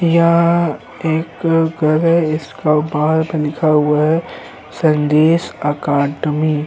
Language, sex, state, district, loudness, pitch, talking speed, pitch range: Hindi, male, Uttar Pradesh, Hamirpur, -15 LUFS, 155 Hz, 110 wpm, 150-165 Hz